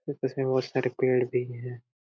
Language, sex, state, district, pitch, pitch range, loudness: Hindi, male, Chhattisgarh, Korba, 125 Hz, 125-130 Hz, -28 LUFS